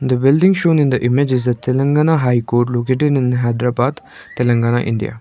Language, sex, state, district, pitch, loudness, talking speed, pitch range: English, male, Sikkim, Gangtok, 125 Hz, -15 LUFS, 185 wpm, 120-140 Hz